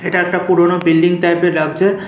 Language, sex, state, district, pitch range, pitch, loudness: Bengali, male, West Bengal, Paschim Medinipur, 170-185 Hz, 180 Hz, -14 LUFS